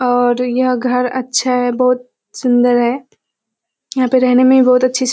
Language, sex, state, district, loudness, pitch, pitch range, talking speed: Hindi, female, Bihar, Kishanganj, -14 LUFS, 250 Hz, 245-255 Hz, 200 wpm